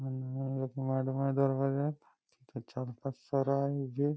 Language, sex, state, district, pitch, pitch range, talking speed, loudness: Marathi, male, Maharashtra, Nagpur, 135 Hz, 130-140 Hz, 70 wpm, -34 LUFS